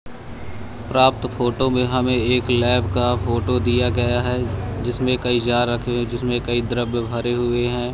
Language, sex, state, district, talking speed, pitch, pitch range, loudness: Hindi, male, Madhya Pradesh, Katni, 165 wpm, 120 Hz, 120-125 Hz, -20 LUFS